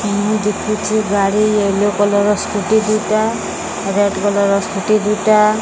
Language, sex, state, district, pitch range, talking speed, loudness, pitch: Odia, female, Odisha, Sambalpur, 205-215 Hz, 170 wpm, -15 LUFS, 210 Hz